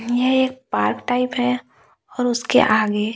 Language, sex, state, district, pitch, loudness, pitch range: Hindi, female, Delhi, New Delhi, 245 Hz, -19 LUFS, 230-250 Hz